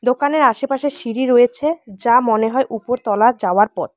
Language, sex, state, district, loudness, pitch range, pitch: Bengali, female, West Bengal, Alipurduar, -17 LUFS, 225-270 Hz, 245 Hz